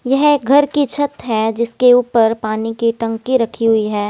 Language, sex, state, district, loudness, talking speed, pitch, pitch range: Hindi, female, Haryana, Jhajjar, -15 LUFS, 205 wpm, 235 Hz, 225-260 Hz